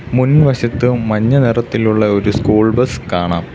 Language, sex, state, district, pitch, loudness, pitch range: Malayalam, male, Kerala, Kollam, 115 Hz, -14 LUFS, 105-125 Hz